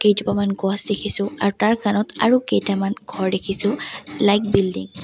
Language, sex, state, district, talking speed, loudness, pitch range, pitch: Assamese, female, Assam, Sonitpur, 155 wpm, -21 LUFS, 195-210 Hz, 200 Hz